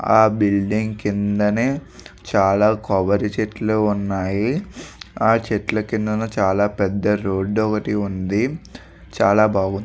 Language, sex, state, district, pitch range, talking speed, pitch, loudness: Telugu, male, Andhra Pradesh, Visakhapatnam, 100-110 Hz, 105 wpm, 105 Hz, -20 LUFS